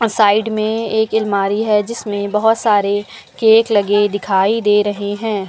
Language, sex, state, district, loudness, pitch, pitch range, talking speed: Hindi, female, Uttar Pradesh, Lucknow, -15 LUFS, 210 Hz, 205-220 Hz, 155 wpm